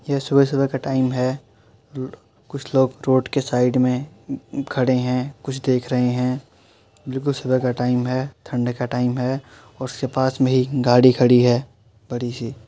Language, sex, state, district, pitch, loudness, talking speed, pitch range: Hindi, male, Uttar Pradesh, Muzaffarnagar, 130 Hz, -20 LUFS, 165 wpm, 125-135 Hz